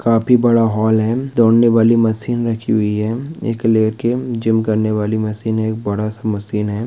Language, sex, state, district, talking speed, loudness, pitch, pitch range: Hindi, male, Chhattisgarh, Balrampur, 190 wpm, -16 LUFS, 110 Hz, 110-115 Hz